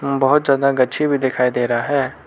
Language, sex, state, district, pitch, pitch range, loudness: Hindi, male, Arunachal Pradesh, Lower Dibang Valley, 135 Hz, 125-140 Hz, -17 LUFS